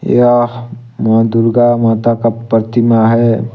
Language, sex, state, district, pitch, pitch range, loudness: Hindi, male, Jharkhand, Deoghar, 115 Hz, 115-120 Hz, -11 LUFS